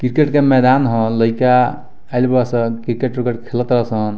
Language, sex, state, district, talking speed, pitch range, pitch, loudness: Bhojpuri, male, Bihar, Muzaffarpur, 170 wpm, 115-130 Hz, 125 Hz, -15 LUFS